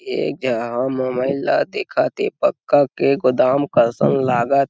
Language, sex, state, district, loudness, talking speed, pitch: Chhattisgarhi, male, Chhattisgarh, Sarguja, -18 LUFS, 140 wpm, 140 Hz